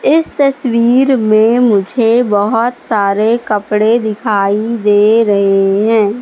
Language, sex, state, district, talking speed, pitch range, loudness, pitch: Hindi, female, Madhya Pradesh, Katni, 105 wpm, 205-235 Hz, -12 LUFS, 220 Hz